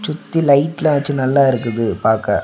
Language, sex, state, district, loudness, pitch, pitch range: Tamil, male, Tamil Nadu, Kanyakumari, -16 LUFS, 140 Hz, 115-155 Hz